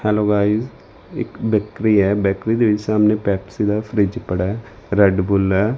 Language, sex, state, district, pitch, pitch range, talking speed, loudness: Punjabi, male, Punjab, Fazilka, 105 Hz, 100-110 Hz, 165 wpm, -18 LUFS